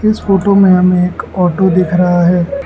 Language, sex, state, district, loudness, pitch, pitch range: Hindi, male, Arunachal Pradesh, Lower Dibang Valley, -11 LUFS, 180 Hz, 180-195 Hz